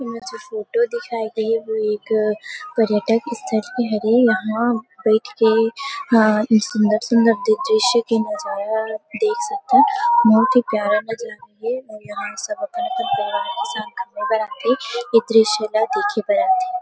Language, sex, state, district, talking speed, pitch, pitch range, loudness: Chhattisgarhi, female, Chhattisgarh, Rajnandgaon, 160 wpm, 230 Hz, 220-310 Hz, -19 LUFS